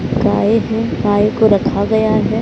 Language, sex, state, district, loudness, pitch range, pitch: Hindi, male, Odisha, Sambalpur, -14 LUFS, 205-220 Hz, 220 Hz